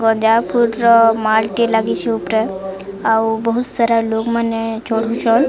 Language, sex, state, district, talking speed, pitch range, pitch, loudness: Odia, female, Odisha, Sambalpur, 110 wpm, 220-230 Hz, 225 Hz, -16 LUFS